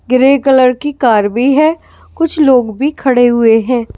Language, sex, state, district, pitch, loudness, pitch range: Hindi, male, Delhi, New Delhi, 255 Hz, -11 LUFS, 240-285 Hz